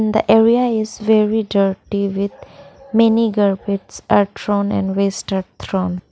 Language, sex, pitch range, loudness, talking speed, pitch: English, female, 195-220 Hz, -17 LUFS, 135 wpm, 205 Hz